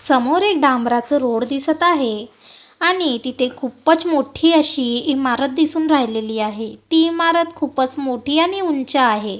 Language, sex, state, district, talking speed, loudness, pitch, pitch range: Marathi, female, Maharashtra, Gondia, 140 wpm, -17 LUFS, 275 Hz, 250-320 Hz